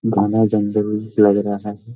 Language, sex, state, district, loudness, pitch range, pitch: Hindi, male, Bihar, Muzaffarpur, -18 LUFS, 105-110 Hz, 105 Hz